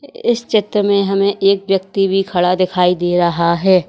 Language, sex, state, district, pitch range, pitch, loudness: Hindi, female, Uttar Pradesh, Lalitpur, 180-200 Hz, 195 Hz, -15 LUFS